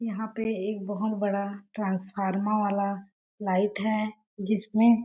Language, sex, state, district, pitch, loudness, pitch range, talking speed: Hindi, female, Chhattisgarh, Balrampur, 205 Hz, -29 LUFS, 200-215 Hz, 120 wpm